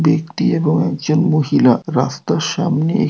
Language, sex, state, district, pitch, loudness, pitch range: Bengali, male, West Bengal, North 24 Parganas, 155 Hz, -16 LUFS, 155-165 Hz